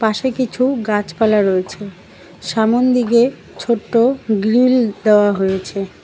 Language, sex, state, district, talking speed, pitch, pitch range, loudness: Bengali, female, West Bengal, Cooch Behar, 100 wpm, 220 Hz, 205-245 Hz, -16 LUFS